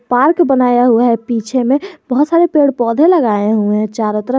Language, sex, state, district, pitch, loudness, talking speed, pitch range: Hindi, male, Jharkhand, Garhwa, 250 Hz, -13 LUFS, 205 wpm, 230-290 Hz